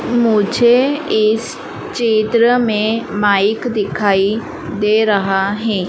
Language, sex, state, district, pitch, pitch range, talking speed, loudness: Hindi, female, Madhya Pradesh, Dhar, 215 Hz, 205-230 Hz, 90 wpm, -15 LUFS